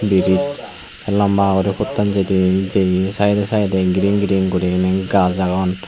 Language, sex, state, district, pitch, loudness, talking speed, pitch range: Chakma, male, Tripura, Unakoti, 95 Hz, -17 LUFS, 145 wpm, 95-100 Hz